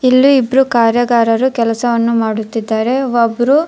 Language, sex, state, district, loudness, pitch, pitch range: Kannada, female, Karnataka, Dharwad, -13 LUFS, 240 Hz, 230-260 Hz